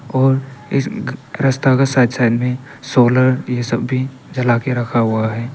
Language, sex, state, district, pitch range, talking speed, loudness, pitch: Hindi, male, Arunachal Pradesh, Papum Pare, 120-135 Hz, 170 wpm, -17 LUFS, 130 Hz